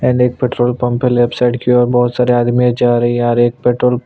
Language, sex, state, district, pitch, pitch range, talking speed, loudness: Hindi, male, Chhattisgarh, Sukma, 120 Hz, 120-125 Hz, 295 wpm, -13 LUFS